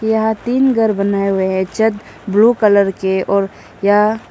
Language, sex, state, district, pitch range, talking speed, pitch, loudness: Hindi, female, Arunachal Pradesh, Lower Dibang Valley, 195-220 Hz, 155 wpm, 205 Hz, -15 LUFS